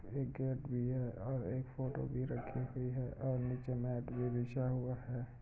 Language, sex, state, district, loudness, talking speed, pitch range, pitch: Hindi, male, Uttar Pradesh, Jyotiba Phule Nagar, -40 LUFS, 210 wpm, 125-130 Hz, 125 Hz